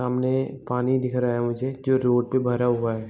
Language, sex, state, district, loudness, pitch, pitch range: Hindi, male, Bihar, East Champaran, -24 LUFS, 125 Hz, 120-130 Hz